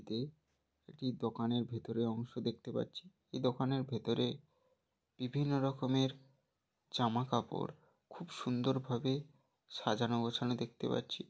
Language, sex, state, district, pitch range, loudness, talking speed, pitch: Bengali, male, West Bengal, Jalpaiguri, 115-135 Hz, -38 LUFS, 100 wpm, 125 Hz